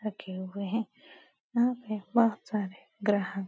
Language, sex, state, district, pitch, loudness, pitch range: Hindi, female, Uttar Pradesh, Etah, 215 Hz, -31 LUFS, 195-235 Hz